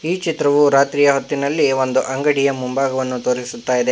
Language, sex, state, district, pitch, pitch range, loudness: Kannada, male, Karnataka, Bangalore, 135 Hz, 130-145 Hz, -17 LUFS